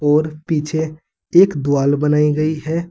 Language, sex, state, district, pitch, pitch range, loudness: Hindi, male, Uttar Pradesh, Saharanpur, 150 Hz, 145-160 Hz, -17 LUFS